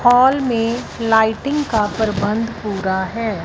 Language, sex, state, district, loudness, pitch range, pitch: Hindi, female, Punjab, Fazilka, -18 LUFS, 210-240 Hz, 225 Hz